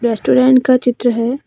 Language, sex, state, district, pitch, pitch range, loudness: Hindi, female, Jharkhand, Deoghar, 245 Hz, 240-255 Hz, -13 LUFS